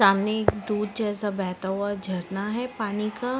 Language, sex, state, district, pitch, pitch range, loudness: Hindi, female, Chhattisgarh, Sarguja, 205 Hz, 195-215 Hz, -27 LUFS